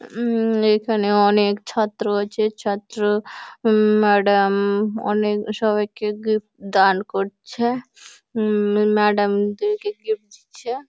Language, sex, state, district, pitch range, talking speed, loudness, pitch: Bengali, female, West Bengal, Malda, 205-225 Hz, 115 wpm, -20 LUFS, 210 Hz